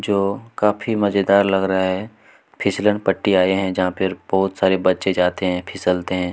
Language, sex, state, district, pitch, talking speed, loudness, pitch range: Hindi, male, Chhattisgarh, Kabirdham, 95 Hz, 160 wpm, -19 LUFS, 95-100 Hz